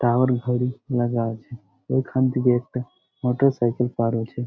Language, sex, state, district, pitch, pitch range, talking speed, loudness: Bengali, male, West Bengal, Jhargram, 125 Hz, 120-130 Hz, 135 wpm, -23 LUFS